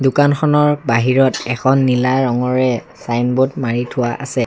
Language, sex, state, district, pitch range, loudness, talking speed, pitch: Assamese, male, Assam, Sonitpur, 120-135 Hz, -16 LUFS, 120 wpm, 130 Hz